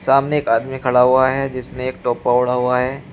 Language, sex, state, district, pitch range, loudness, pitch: Hindi, male, Uttar Pradesh, Shamli, 125-135 Hz, -17 LUFS, 130 Hz